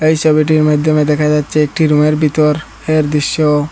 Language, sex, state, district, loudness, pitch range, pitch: Bengali, male, Assam, Hailakandi, -13 LUFS, 150-155 Hz, 150 Hz